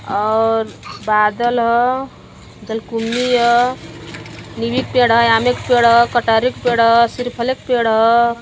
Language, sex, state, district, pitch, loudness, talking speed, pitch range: Bhojpuri, female, Uttar Pradesh, Gorakhpur, 235 Hz, -15 LUFS, 130 wpm, 225-245 Hz